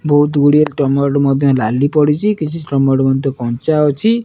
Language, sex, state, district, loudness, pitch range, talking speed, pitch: Odia, male, Odisha, Nuapada, -14 LUFS, 135-150 Hz, 140 wpm, 145 Hz